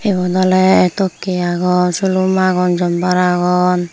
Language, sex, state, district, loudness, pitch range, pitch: Chakma, female, Tripura, Unakoti, -14 LUFS, 180-185 Hz, 180 Hz